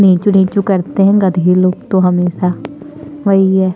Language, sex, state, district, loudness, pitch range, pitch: Hindi, female, Chhattisgarh, Sukma, -12 LUFS, 180-195 Hz, 185 Hz